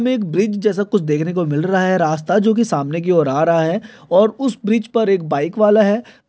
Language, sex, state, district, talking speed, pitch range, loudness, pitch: Hindi, male, Chhattisgarh, Kabirdham, 255 wpm, 165-220 Hz, -17 LUFS, 200 Hz